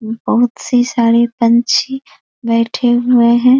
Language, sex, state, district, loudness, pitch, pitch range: Hindi, female, Bihar, East Champaran, -13 LUFS, 240 Hz, 235-250 Hz